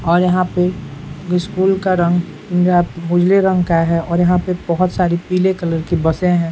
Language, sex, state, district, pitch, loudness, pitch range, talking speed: Hindi, male, Bihar, Saran, 175 Hz, -16 LUFS, 170-180 Hz, 200 wpm